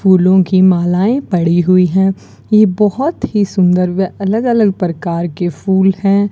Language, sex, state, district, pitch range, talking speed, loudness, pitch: Hindi, female, Rajasthan, Bikaner, 180-205 Hz, 160 wpm, -13 LUFS, 190 Hz